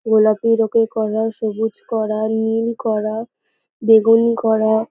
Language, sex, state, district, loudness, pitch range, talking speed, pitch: Bengali, female, West Bengal, Paschim Medinipur, -17 LUFS, 220-225 Hz, 120 wpm, 220 Hz